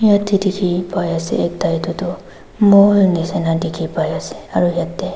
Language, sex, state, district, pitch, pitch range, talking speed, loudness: Nagamese, female, Nagaland, Dimapur, 175 Hz, 165-195 Hz, 115 wpm, -17 LUFS